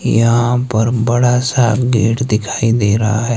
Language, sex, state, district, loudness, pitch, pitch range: Hindi, male, Himachal Pradesh, Shimla, -14 LUFS, 115 Hz, 110-120 Hz